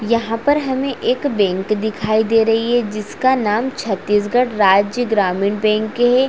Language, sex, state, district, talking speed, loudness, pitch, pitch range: Hindi, female, Chhattisgarh, Raigarh, 160 wpm, -17 LUFS, 225 Hz, 210-245 Hz